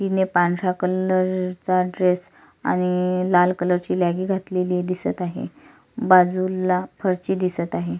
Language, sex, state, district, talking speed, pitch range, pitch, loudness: Marathi, female, Maharashtra, Solapur, 125 wpm, 180-185 Hz, 180 Hz, -21 LUFS